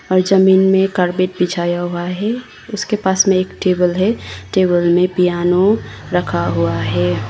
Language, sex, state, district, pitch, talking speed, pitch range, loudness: Hindi, female, Sikkim, Gangtok, 180 Hz, 155 wpm, 175-190 Hz, -16 LUFS